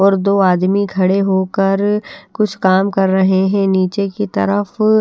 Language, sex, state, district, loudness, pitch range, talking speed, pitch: Hindi, female, Haryana, Rohtak, -15 LUFS, 190-205 Hz, 155 wpm, 195 Hz